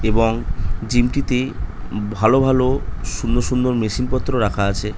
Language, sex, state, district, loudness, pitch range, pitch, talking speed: Bengali, male, West Bengal, North 24 Parganas, -20 LUFS, 100-125 Hz, 115 Hz, 155 wpm